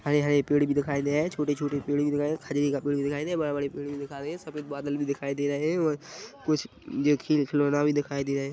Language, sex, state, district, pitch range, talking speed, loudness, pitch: Hindi, male, Chhattisgarh, Rajnandgaon, 140-150 Hz, 245 wpm, -28 LUFS, 145 Hz